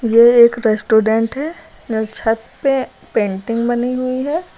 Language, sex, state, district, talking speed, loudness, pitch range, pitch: Hindi, female, Uttar Pradesh, Lucknow, 130 wpm, -16 LUFS, 220-260 Hz, 235 Hz